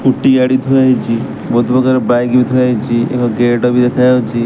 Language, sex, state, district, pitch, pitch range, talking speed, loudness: Odia, male, Odisha, Sambalpur, 125 Hz, 120-130 Hz, 200 wpm, -12 LUFS